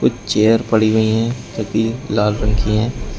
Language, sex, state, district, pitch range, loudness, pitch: Hindi, male, Uttar Pradesh, Shamli, 105-115 Hz, -17 LUFS, 110 Hz